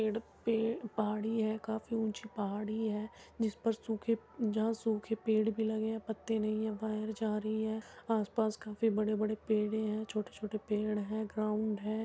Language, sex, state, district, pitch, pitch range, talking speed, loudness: Hindi, female, Uttar Pradesh, Muzaffarnagar, 220 Hz, 215-225 Hz, 180 wpm, -35 LUFS